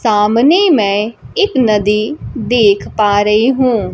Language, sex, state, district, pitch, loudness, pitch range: Hindi, female, Bihar, Kaimur, 220 Hz, -12 LUFS, 210-250 Hz